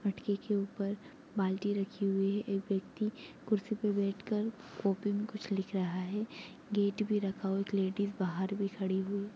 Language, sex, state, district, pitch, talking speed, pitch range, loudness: Hindi, female, Chhattisgarh, Raigarh, 200 Hz, 185 wpm, 195-210 Hz, -35 LUFS